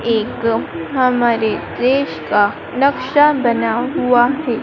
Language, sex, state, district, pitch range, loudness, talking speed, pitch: Hindi, female, Madhya Pradesh, Dhar, 225-260 Hz, -16 LUFS, 105 wpm, 240 Hz